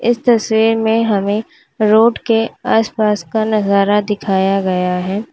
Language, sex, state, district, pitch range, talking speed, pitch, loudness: Hindi, female, Uttar Pradesh, Lalitpur, 200-225 Hz, 145 wpm, 215 Hz, -15 LUFS